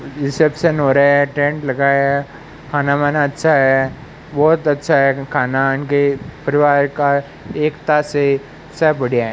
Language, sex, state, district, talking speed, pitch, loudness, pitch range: Hindi, male, Rajasthan, Bikaner, 150 wpm, 145 Hz, -16 LUFS, 140-150 Hz